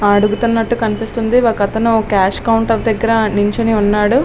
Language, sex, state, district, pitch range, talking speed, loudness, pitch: Telugu, female, Andhra Pradesh, Srikakulam, 210-230 Hz, 125 wpm, -14 LUFS, 225 Hz